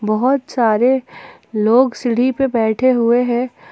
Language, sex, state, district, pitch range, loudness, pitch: Hindi, female, Jharkhand, Ranchi, 230-260 Hz, -16 LUFS, 245 Hz